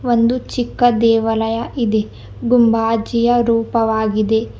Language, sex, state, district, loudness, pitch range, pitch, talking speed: Kannada, female, Karnataka, Bidar, -16 LUFS, 220-240 Hz, 230 Hz, 80 wpm